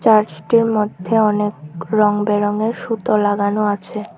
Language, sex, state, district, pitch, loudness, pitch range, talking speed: Bengali, female, Tripura, Unakoti, 210 Hz, -17 LUFS, 205-220 Hz, 115 wpm